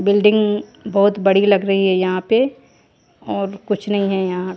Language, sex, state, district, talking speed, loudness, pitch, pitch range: Hindi, female, Haryana, Jhajjar, 170 wpm, -17 LUFS, 200 Hz, 195-205 Hz